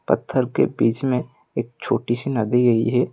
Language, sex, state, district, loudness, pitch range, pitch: Hindi, male, Odisha, Khordha, -21 LUFS, 115-125 Hz, 120 Hz